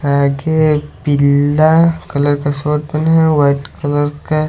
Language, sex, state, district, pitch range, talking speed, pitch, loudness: Hindi, male, Odisha, Sambalpur, 145-155 Hz, 135 wpm, 145 Hz, -14 LUFS